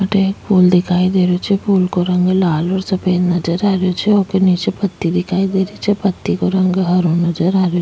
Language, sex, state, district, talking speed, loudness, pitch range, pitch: Rajasthani, female, Rajasthan, Nagaur, 245 wpm, -15 LUFS, 180-195 Hz, 185 Hz